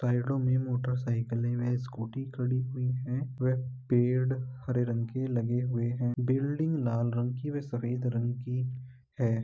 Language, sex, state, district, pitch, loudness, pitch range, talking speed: Hindi, male, Uttar Pradesh, Muzaffarnagar, 125 Hz, -31 LUFS, 120-130 Hz, 160 wpm